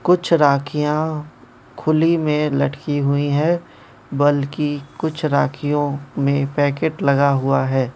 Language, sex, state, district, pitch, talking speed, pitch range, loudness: Hindi, male, Manipur, Imphal West, 145 Hz, 115 wpm, 140-150 Hz, -19 LUFS